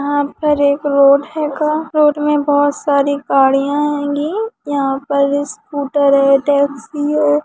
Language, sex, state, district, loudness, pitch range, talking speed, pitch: Hindi, female, Bihar, Purnia, -15 LUFS, 280-295 Hz, 130 wpm, 285 Hz